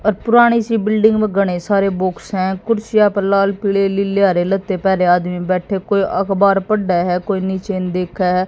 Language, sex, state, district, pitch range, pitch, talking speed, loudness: Hindi, female, Haryana, Jhajjar, 185-205 Hz, 195 Hz, 190 wpm, -16 LUFS